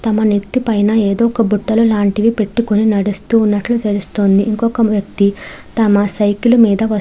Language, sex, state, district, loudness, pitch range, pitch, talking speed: Telugu, female, Andhra Pradesh, Krishna, -14 LUFS, 205-225 Hz, 215 Hz, 130 wpm